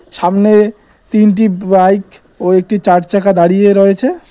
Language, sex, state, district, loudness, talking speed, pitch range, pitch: Bengali, male, West Bengal, Cooch Behar, -11 LUFS, 140 wpm, 185-210 Hz, 195 Hz